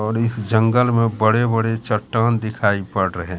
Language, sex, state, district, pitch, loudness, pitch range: Hindi, male, Bihar, Katihar, 110 Hz, -19 LUFS, 105-115 Hz